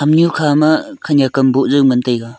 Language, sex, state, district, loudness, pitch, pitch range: Wancho, male, Arunachal Pradesh, Longding, -13 LUFS, 140 Hz, 130-150 Hz